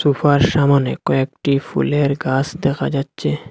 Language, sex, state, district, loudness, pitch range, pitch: Bengali, male, Assam, Hailakandi, -18 LUFS, 140-145 Hz, 140 Hz